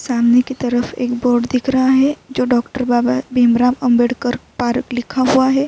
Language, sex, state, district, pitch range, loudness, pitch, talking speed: Urdu, female, Uttar Pradesh, Budaun, 245-260 Hz, -16 LUFS, 250 Hz, 180 wpm